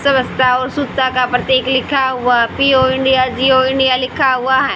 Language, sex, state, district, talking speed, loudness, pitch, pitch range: Hindi, female, Haryana, Rohtak, 190 wpm, -14 LUFS, 260 Hz, 255-265 Hz